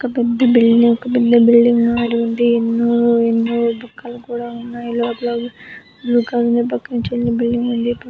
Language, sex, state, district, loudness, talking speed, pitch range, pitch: Telugu, female, Andhra Pradesh, Anantapur, -16 LUFS, 140 wpm, 235-240 Hz, 235 Hz